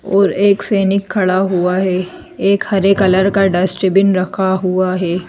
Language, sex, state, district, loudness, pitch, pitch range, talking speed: Hindi, female, Madhya Pradesh, Bhopal, -14 LUFS, 190 Hz, 185-200 Hz, 160 wpm